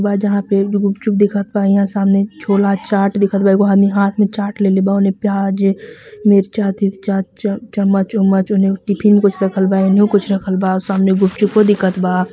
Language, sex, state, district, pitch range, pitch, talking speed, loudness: Bhojpuri, female, Jharkhand, Palamu, 195-205 Hz, 200 Hz, 175 wpm, -15 LUFS